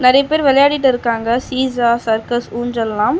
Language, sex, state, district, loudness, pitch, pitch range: Tamil, female, Tamil Nadu, Chennai, -15 LUFS, 245 Hz, 235-270 Hz